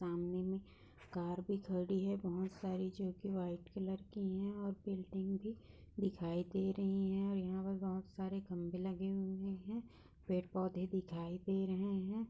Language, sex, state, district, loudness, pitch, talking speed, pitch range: Hindi, female, Uttar Pradesh, Etah, -41 LUFS, 190 Hz, 165 wpm, 185-195 Hz